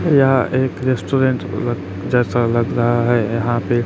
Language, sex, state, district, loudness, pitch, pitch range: Hindi, male, Chhattisgarh, Raipur, -17 LUFS, 120 Hz, 120-130 Hz